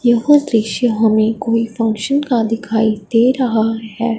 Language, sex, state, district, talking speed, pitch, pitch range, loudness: Hindi, female, Punjab, Fazilka, 145 wpm, 225 Hz, 220-240 Hz, -15 LUFS